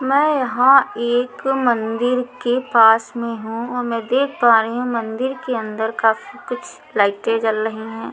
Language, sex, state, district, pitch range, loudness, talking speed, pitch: Hindi, female, Chhattisgarh, Raipur, 225-250 Hz, -18 LUFS, 170 wpm, 235 Hz